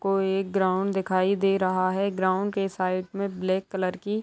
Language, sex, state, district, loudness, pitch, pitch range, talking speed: Hindi, female, Maharashtra, Solapur, -26 LUFS, 190 Hz, 185-195 Hz, 200 wpm